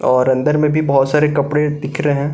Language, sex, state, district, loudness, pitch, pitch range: Hindi, male, Bihar, Gaya, -15 LUFS, 145 Hz, 140-150 Hz